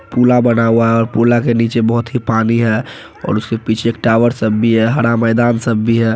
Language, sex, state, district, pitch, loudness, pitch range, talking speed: Hindi, male, Bihar, Araria, 115 Hz, -14 LUFS, 115-120 Hz, 235 wpm